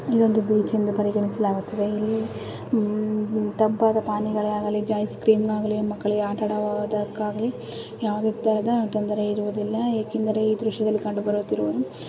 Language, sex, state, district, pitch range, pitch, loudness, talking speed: Kannada, female, Karnataka, Dakshina Kannada, 210-220 Hz, 215 Hz, -24 LUFS, 105 wpm